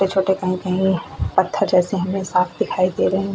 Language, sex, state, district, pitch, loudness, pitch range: Hindi, female, Goa, North and South Goa, 190 Hz, -20 LUFS, 185-195 Hz